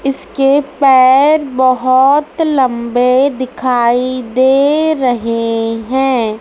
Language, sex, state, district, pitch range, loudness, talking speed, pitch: Hindi, female, Madhya Pradesh, Dhar, 245-275 Hz, -12 LUFS, 75 wpm, 260 Hz